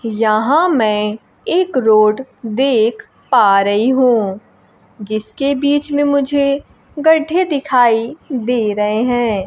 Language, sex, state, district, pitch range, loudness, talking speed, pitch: Hindi, female, Bihar, Kaimur, 215-280 Hz, -15 LUFS, 110 wpm, 245 Hz